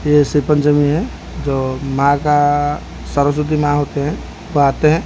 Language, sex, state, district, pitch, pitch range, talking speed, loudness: Hindi, male, Odisha, Khordha, 145 Hz, 140-150 Hz, 165 wpm, -16 LUFS